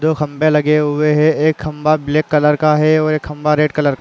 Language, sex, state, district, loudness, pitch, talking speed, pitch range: Hindi, male, Uttar Pradesh, Muzaffarnagar, -14 LUFS, 150 Hz, 240 wpm, 150-155 Hz